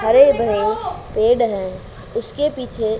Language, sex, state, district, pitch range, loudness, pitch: Hindi, male, Haryana, Charkhi Dadri, 215-275 Hz, -18 LUFS, 230 Hz